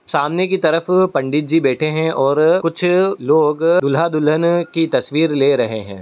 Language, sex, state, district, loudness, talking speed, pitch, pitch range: Hindi, male, Uttar Pradesh, Etah, -16 LUFS, 160 wpm, 155 Hz, 140-170 Hz